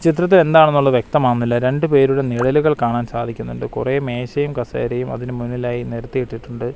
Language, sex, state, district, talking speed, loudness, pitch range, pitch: Malayalam, male, Kerala, Wayanad, 135 wpm, -18 LUFS, 120-145 Hz, 125 Hz